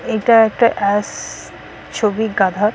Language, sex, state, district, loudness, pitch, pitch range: Bengali, female, West Bengal, Malda, -15 LUFS, 215 Hz, 205-225 Hz